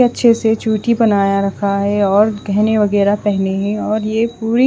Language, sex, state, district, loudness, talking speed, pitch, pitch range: Hindi, female, Odisha, Khordha, -15 LUFS, 180 wpm, 210 Hz, 200-225 Hz